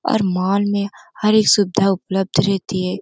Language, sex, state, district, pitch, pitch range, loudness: Hindi, female, Uttar Pradesh, Gorakhpur, 195 Hz, 185-205 Hz, -18 LUFS